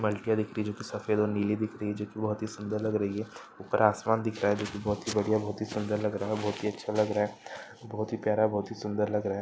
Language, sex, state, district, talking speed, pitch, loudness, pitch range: Hindi, female, Bihar, East Champaran, 325 wpm, 105 Hz, -30 LUFS, 105-110 Hz